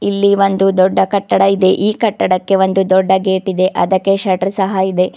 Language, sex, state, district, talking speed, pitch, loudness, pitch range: Kannada, female, Karnataka, Bidar, 160 wpm, 190 Hz, -13 LUFS, 190-195 Hz